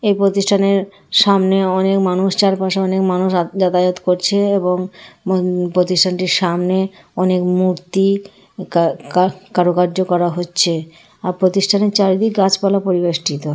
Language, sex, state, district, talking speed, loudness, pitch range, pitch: Bengali, female, West Bengal, Jhargram, 105 wpm, -16 LUFS, 180-195 Hz, 185 Hz